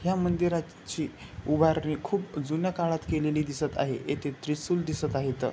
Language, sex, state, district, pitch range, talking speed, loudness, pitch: Marathi, male, Maharashtra, Chandrapur, 145-170 Hz, 150 wpm, -29 LUFS, 155 Hz